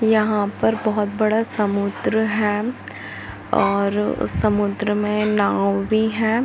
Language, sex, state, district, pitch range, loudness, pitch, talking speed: Hindi, female, Chhattisgarh, Bilaspur, 205-220 Hz, -20 LUFS, 210 Hz, 110 wpm